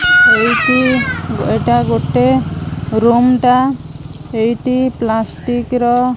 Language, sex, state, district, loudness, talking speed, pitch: Odia, female, Odisha, Malkangiri, -13 LUFS, 85 wpm, 240 Hz